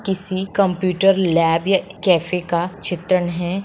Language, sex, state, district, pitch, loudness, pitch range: Hindi, female, Bihar, Begusarai, 185 Hz, -19 LUFS, 175-190 Hz